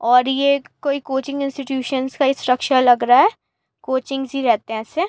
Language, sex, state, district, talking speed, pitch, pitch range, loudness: Hindi, female, Uttar Pradesh, Gorakhpur, 175 wpm, 265 Hz, 250-280 Hz, -18 LUFS